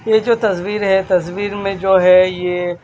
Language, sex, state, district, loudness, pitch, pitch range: Hindi, male, Maharashtra, Washim, -15 LUFS, 190 Hz, 180-205 Hz